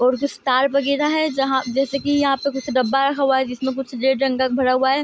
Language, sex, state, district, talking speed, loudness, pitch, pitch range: Hindi, female, Bihar, Vaishali, 295 wpm, -19 LUFS, 270 Hz, 260-280 Hz